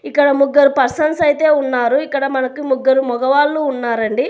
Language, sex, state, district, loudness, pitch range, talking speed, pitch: Telugu, female, Telangana, Hyderabad, -15 LUFS, 260-290 Hz, 140 wpm, 275 Hz